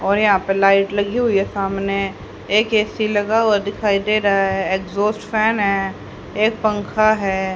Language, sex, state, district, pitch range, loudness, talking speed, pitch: Hindi, female, Haryana, Rohtak, 195-215 Hz, -18 LUFS, 175 wpm, 205 Hz